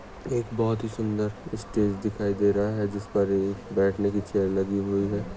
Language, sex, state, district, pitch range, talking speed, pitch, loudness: Hindi, male, Maharashtra, Nagpur, 100-105 Hz, 190 wpm, 100 Hz, -27 LUFS